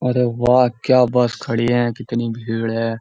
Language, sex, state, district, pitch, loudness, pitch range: Hindi, male, Uttar Pradesh, Jyotiba Phule Nagar, 120 Hz, -18 LUFS, 115-125 Hz